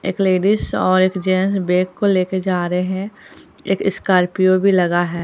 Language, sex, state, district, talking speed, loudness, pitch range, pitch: Hindi, female, Bihar, Katihar, 185 wpm, -17 LUFS, 180-190 Hz, 185 Hz